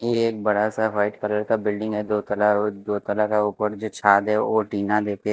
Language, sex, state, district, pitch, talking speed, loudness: Hindi, male, Maharashtra, Mumbai Suburban, 105 Hz, 225 wpm, -22 LUFS